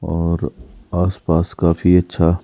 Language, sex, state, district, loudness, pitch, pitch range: Hindi, male, Himachal Pradesh, Shimla, -18 LUFS, 85 Hz, 85-90 Hz